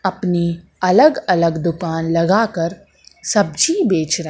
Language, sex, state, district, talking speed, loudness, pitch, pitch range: Hindi, female, Madhya Pradesh, Katni, 110 wpm, -17 LUFS, 170 Hz, 165-185 Hz